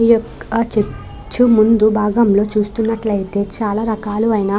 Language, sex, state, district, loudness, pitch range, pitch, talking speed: Telugu, female, Andhra Pradesh, Krishna, -16 LUFS, 205-225 Hz, 215 Hz, 130 wpm